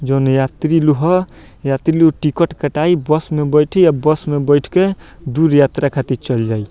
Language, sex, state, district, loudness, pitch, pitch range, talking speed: Bhojpuri, male, Bihar, Muzaffarpur, -15 LUFS, 150 Hz, 135-165 Hz, 190 wpm